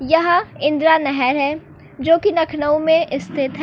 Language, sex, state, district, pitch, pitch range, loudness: Hindi, female, Uttar Pradesh, Lucknow, 305 Hz, 280-325 Hz, -17 LUFS